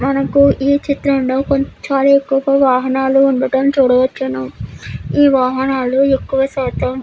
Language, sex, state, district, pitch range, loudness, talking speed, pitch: Telugu, female, Andhra Pradesh, Guntur, 260-275 Hz, -14 LUFS, 120 wpm, 270 Hz